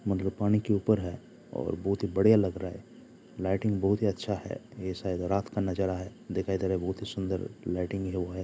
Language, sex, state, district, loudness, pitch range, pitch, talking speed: Hindi, male, Jharkhand, Jamtara, -30 LUFS, 95-105 Hz, 95 Hz, 235 wpm